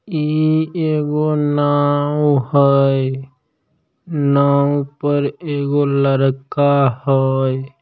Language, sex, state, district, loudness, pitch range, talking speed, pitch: Maithili, male, Bihar, Samastipur, -16 LUFS, 140-150 Hz, 70 wpm, 145 Hz